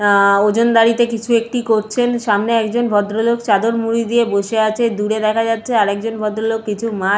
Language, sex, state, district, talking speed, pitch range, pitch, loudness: Bengali, female, West Bengal, Jalpaiguri, 185 wpm, 210-230 Hz, 225 Hz, -16 LUFS